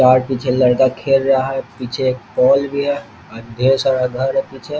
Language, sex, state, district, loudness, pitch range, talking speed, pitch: Hindi, male, Bihar, East Champaran, -17 LUFS, 125-135 Hz, 210 wpm, 130 Hz